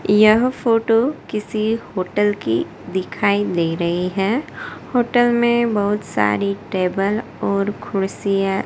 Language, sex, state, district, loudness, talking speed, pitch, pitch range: Hindi, female, Gujarat, Gandhinagar, -19 LUFS, 110 wpm, 205 Hz, 190-225 Hz